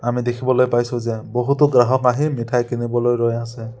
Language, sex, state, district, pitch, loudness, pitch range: Assamese, male, Assam, Sonitpur, 120 Hz, -19 LUFS, 120-125 Hz